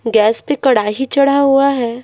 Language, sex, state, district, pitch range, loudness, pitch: Hindi, female, Bihar, West Champaran, 230-275 Hz, -13 LUFS, 265 Hz